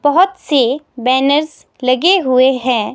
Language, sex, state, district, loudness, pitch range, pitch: Hindi, female, Himachal Pradesh, Shimla, -14 LUFS, 255-300 Hz, 265 Hz